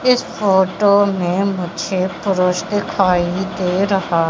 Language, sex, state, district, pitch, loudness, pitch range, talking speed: Hindi, female, Madhya Pradesh, Katni, 190 Hz, -17 LUFS, 180-200 Hz, 110 wpm